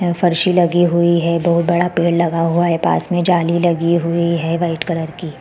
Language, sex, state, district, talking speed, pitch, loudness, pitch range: Hindi, female, Chhattisgarh, Balrampur, 245 wpm, 170 Hz, -16 LUFS, 170-175 Hz